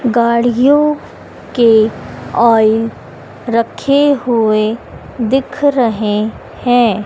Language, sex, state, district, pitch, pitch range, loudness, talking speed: Hindi, female, Madhya Pradesh, Dhar, 235 Hz, 225-260 Hz, -13 LUFS, 70 wpm